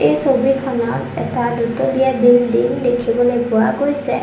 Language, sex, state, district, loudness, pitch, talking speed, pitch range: Assamese, female, Assam, Sonitpur, -16 LUFS, 245 Hz, 115 wpm, 235-265 Hz